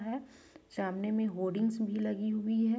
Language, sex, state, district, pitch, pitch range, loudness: Hindi, female, Chhattisgarh, Raigarh, 220 Hz, 210-225 Hz, -34 LUFS